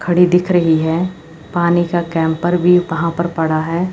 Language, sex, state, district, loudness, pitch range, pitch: Hindi, female, Chandigarh, Chandigarh, -15 LUFS, 165-175 Hz, 170 Hz